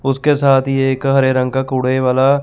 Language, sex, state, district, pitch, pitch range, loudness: Hindi, male, Chandigarh, Chandigarh, 135 Hz, 130-135 Hz, -15 LUFS